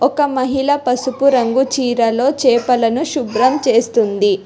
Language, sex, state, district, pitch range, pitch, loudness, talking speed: Telugu, female, Telangana, Hyderabad, 235-270 Hz, 255 Hz, -15 LUFS, 110 wpm